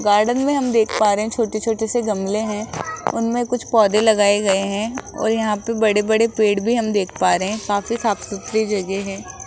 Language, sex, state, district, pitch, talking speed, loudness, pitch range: Hindi, female, Rajasthan, Jaipur, 215 Hz, 195 wpm, -19 LUFS, 205-230 Hz